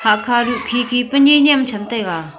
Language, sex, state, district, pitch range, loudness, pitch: Wancho, female, Arunachal Pradesh, Longding, 215-260 Hz, -15 LUFS, 240 Hz